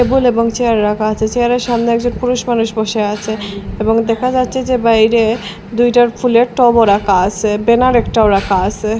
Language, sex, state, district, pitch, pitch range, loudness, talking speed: Bengali, female, Assam, Hailakandi, 230 Hz, 215-245 Hz, -13 LUFS, 175 wpm